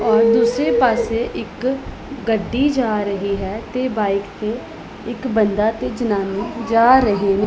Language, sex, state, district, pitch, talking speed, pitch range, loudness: Punjabi, female, Punjab, Pathankot, 225 Hz, 145 wpm, 205-245 Hz, -18 LUFS